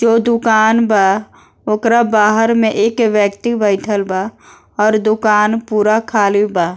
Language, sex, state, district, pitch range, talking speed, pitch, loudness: Bhojpuri, female, Bihar, East Champaran, 205-225 Hz, 135 wpm, 215 Hz, -14 LUFS